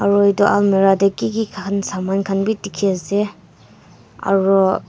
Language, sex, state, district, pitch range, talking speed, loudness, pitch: Nagamese, female, Nagaland, Dimapur, 195-200 Hz, 145 wpm, -17 LUFS, 195 Hz